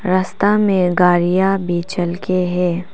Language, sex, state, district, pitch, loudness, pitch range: Hindi, female, Arunachal Pradesh, Papum Pare, 180 Hz, -16 LUFS, 175-190 Hz